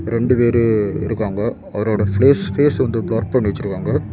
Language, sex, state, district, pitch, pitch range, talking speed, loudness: Tamil, male, Tamil Nadu, Kanyakumari, 115 Hz, 105-125 Hz, 145 wpm, -17 LUFS